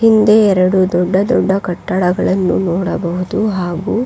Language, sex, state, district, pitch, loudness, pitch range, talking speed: Kannada, female, Karnataka, Raichur, 185 Hz, -14 LUFS, 180-210 Hz, 105 wpm